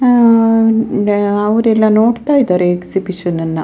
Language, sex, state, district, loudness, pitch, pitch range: Kannada, female, Karnataka, Dakshina Kannada, -12 LUFS, 215 Hz, 190-230 Hz